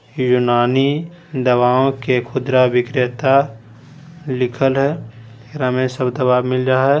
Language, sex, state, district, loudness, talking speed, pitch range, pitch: Hindi, male, Bihar, Madhepura, -17 LUFS, 110 wpm, 125-135 Hz, 130 Hz